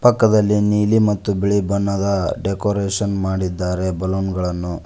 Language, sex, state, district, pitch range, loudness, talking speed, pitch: Kannada, male, Karnataka, Koppal, 95-105 Hz, -19 LUFS, 110 wpm, 100 Hz